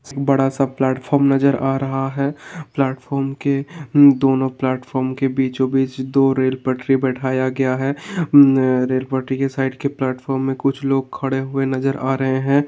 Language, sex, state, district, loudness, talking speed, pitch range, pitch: Hindi, male, Uttar Pradesh, Hamirpur, -18 LUFS, 165 wpm, 130-140 Hz, 135 Hz